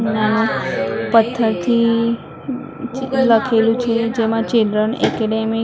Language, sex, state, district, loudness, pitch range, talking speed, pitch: Gujarati, female, Maharashtra, Mumbai Suburban, -17 LUFS, 225-235 Hz, 75 wpm, 225 Hz